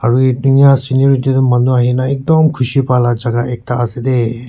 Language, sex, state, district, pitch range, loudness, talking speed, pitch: Nagamese, male, Nagaland, Kohima, 120-135 Hz, -13 LUFS, 200 wpm, 125 Hz